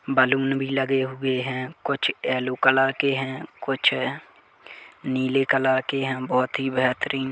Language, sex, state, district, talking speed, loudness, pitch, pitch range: Hindi, male, Chhattisgarh, Kabirdham, 155 wpm, -23 LUFS, 130 Hz, 130-135 Hz